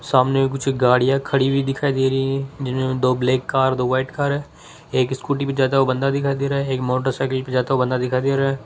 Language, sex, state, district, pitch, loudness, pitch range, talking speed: Hindi, male, Rajasthan, Jaipur, 135 Hz, -20 LUFS, 130-135 Hz, 255 wpm